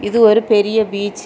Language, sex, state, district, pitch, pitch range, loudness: Tamil, female, Tamil Nadu, Kanyakumari, 215 Hz, 205-220 Hz, -14 LUFS